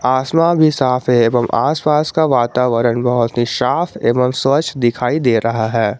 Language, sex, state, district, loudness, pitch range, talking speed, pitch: Hindi, male, Jharkhand, Garhwa, -15 LUFS, 120-150 Hz, 170 wpm, 125 Hz